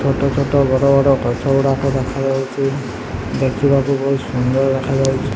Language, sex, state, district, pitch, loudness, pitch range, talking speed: Odia, male, Odisha, Sambalpur, 135 Hz, -17 LUFS, 135-140 Hz, 110 wpm